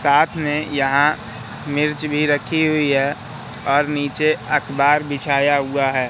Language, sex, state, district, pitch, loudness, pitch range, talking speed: Hindi, male, Madhya Pradesh, Katni, 145 Hz, -18 LUFS, 140-150 Hz, 135 wpm